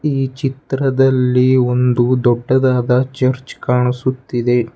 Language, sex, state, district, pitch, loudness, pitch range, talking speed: Kannada, male, Karnataka, Bangalore, 130 Hz, -16 LUFS, 125-130 Hz, 75 wpm